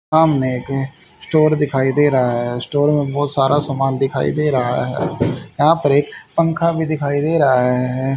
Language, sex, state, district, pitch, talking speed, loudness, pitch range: Hindi, male, Haryana, Rohtak, 140 Hz, 175 wpm, -17 LUFS, 130-150 Hz